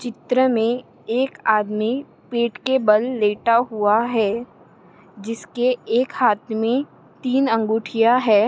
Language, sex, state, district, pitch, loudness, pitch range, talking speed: Hindi, female, Maharashtra, Solapur, 230 Hz, -20 LUFS, 215-250 Hz, 120 wpm